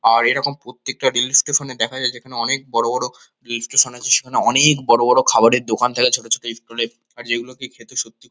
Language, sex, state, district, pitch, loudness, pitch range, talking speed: Bengali, male, West Bengal, Kolkata, 120 Hz, -17 LUFS, 115-130 Hz, 225 wpm